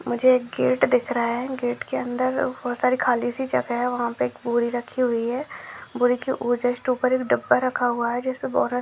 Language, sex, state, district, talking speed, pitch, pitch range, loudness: Hindi, male, Maharashtra, Solapur, 230 wpm, 245 Hz, 240-255 Hz, -23 LUFS